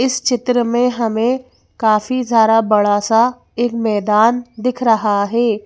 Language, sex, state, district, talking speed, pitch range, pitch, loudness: Hindi, female, Madhya Pradesh, Bhopal, 140 wpm, 220-245 Hz, 230 Hz, -16 LUFS